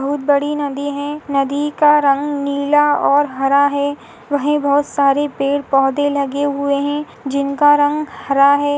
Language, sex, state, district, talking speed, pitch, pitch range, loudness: Hindi, female, Goa, North and South Goa, 155 wpm, 285 Hz, 280-290 Hz, -16 LUFS